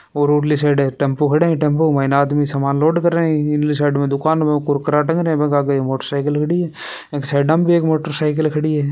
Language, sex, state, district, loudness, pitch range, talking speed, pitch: Hindi, male, Rajasthan, Churu, -17 LUFS, 140-155 Hz, 235 wpm, 150 Hz